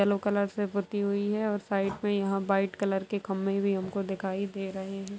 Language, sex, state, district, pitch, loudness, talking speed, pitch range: Hindi, female, Bihar, Darbhanga, 200 Hz, -30 LUFS, 230 wpm, 195-200 Hz